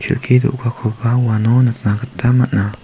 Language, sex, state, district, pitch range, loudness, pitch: Garo, male, Meghalaya, South Garo Hills, 110-125 Hz, -16 LUFS, 120 Hz